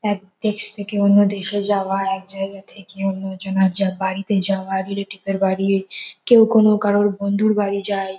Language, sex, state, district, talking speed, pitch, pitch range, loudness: Bengali, female, West Bengal, North 24 Parganas, 170 wpm, 195 Hz, 195-205 Hz, -19 LUFS